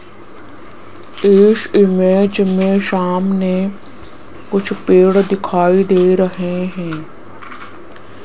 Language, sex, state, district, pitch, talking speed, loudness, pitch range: Hindi, female, Rajasthan, Jaipur, 190 Hz, 75 wpm, -14 LUFS, 185-195 Hz